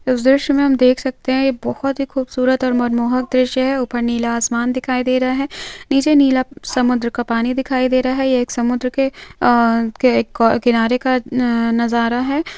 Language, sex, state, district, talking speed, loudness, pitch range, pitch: Hindi, female, Andhra Pradesh, Krishna, 185 wpm, -17 LUFS, 240-265 Hz, 255 Hz